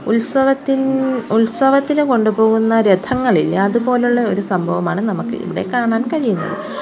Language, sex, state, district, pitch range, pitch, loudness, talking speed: Malayalam, female, Kerala, Kollam, 205-265 Hz, 230 Hz, -16 LUFS, 95 wpm